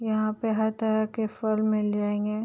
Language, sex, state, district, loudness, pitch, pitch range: Hindi, female, Uttar Pradesh, Jyotiba Phule Nagar, -27 LUFS, 215 Hz, 215-220 Hz